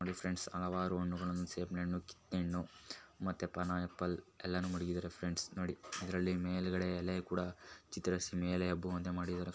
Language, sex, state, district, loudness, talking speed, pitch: Kannada, female, Karnataka, Mysore, -40 LUFS, 145 wpm, 90 Hz